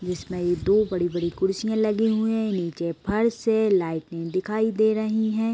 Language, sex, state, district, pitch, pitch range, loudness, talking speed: Hindi, female, Uttar Pradesh, Deoria, 210 Hz, 175-220 Hz, -24 LUFS, 195 wpm